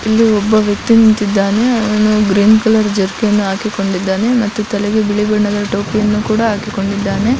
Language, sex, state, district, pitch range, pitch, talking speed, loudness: Kannada, female, Karnataka, Dakshina Kannada, 205-220 Hz, 210 Hz, 115 wpm, -13 LUFS